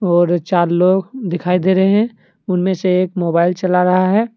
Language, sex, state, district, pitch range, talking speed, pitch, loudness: Hindi, male, Jharkhand, Deoghar, 175-190 Hz, 190 wpm, 185 Hz, -15 LUFS